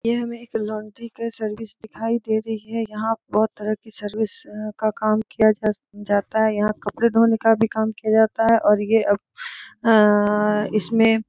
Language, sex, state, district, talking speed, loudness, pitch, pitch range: Hindi, female, Jharkhand, Sahebganj, 180 wpm, -21 LUFS, 220 Hz, 210-225 Hz